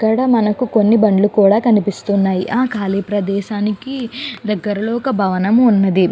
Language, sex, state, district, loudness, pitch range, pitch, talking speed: Telugu, female, Andhra Pradesh, Chittoor, -15 LUFS, 200-235 Hz, 210 Hz, 130 wpm